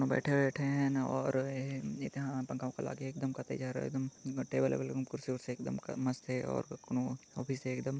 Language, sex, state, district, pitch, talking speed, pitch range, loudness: Chhattisgarhi, male, Chhattisgarh, Jashpur, 130 Hz, 170 wpm, 130-135 Hz, -37 LUFS